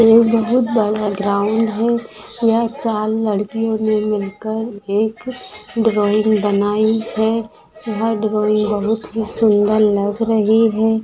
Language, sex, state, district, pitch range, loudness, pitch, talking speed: Hindi, female, Maharashtra, Nagpur, 210-225 Hz, -17 LUFS, 220 Hz, 120 wpm